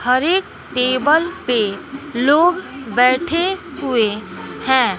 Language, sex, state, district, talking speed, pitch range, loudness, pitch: Hindi, female, Bihar, West Champaran, 95 wpm, 245-330 Hz, -17 LUFS, 265 Hz